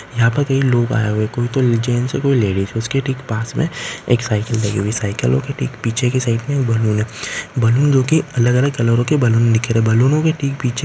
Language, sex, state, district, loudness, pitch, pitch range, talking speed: Marwari, male, Rajasthan, Nagaur, -17 LUFS, 120 Hz, 115-135 Hz, 110 wpm